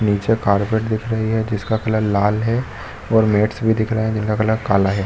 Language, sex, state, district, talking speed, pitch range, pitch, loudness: Hindi, male, Chhattisgarh, Bilaspur, 225 wpm, 105-110 Hz, 110 Hz, -19 LUFS